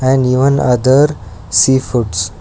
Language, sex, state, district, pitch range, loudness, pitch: English, male, Karnataka, Bangalore, 100-130 Hz, -12 LUFS, 125 Hz